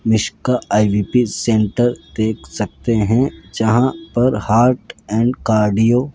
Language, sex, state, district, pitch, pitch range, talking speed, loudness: Hindi, male, Rajasthan, Jaipur, 115 Hz, 110-120 Hz, 115 wpm, -17 LUFS